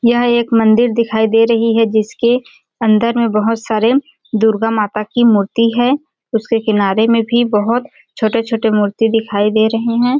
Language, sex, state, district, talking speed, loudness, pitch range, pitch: Hindi, female, Chhattisgarh, Balrampur, 165 wpm, -14 LUFS, 220-235 Hz, 225 Hz